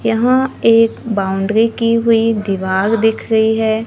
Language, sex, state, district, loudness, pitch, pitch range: Hindi, female, Maharashtra, Gondia, -14 LUFS, 225 Hz, 220-230 Hz